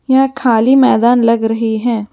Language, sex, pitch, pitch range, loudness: Hindi, female, 235 Hz, 225-260 Hz, -12 LUFS